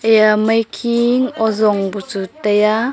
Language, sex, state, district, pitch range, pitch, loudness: Wancho, female, Arunachal Pradesh, Longding, 205-225 Hz, 215 Hz, -16 LUFS